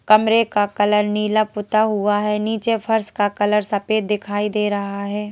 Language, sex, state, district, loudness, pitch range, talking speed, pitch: Hindi, female, Madhya Pradesh, Bhopal, -19 LUFS, 205-215 Hz, 180 wpm, 210 Hz